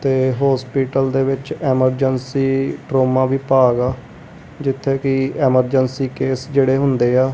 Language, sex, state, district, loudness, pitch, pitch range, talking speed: Punjabi, male, Punjab, Kapurthala, -17 LUFS, 135 Hz, 130-135 Hz, 125 wpm